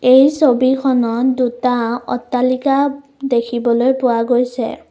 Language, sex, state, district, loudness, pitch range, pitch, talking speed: Assamese, female, Assam, Kamrup Metropolitan, -16 LUFS, 240-265 Hz, 250 Hz, 85 wpm